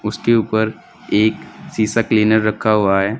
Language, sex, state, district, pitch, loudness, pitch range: Hindi, male, Uttar Pradesh, Saharanpur, 110 Hz, -16 LUFS, 105-110 Hz